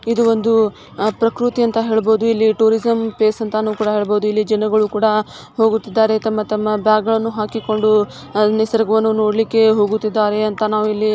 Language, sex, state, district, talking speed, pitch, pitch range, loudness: Kannada, female, Karnataka, Shimoga, 150 wpm, 215 Hz, 215-225 Hz, -16 LUFS